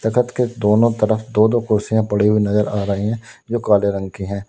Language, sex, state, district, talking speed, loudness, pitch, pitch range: Hindi, male, Uttar Pradesh, Lalitpur, 225 wpm, -18 LUFS, 105 Hz, 105-115 Hz